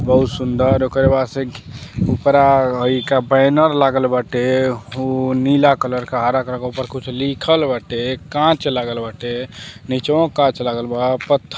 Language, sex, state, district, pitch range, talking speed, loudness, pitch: Bhojpuri, male, Uttar Pradesh, Deoria, 125-135 Hz, 160 wpm, -17 LUFS, 130 Hz